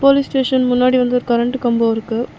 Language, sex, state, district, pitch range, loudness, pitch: Tamil, female, Tamil Nadu, Chennai, 235-260 Hz, -16 LUFS, 250 Hz